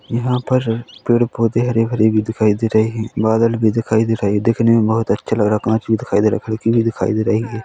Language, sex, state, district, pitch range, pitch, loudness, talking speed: Hindi, male, Chhattisgarh, Korba, 110-115 Hz, 115 Hz, -17 LUFS, 260 wpm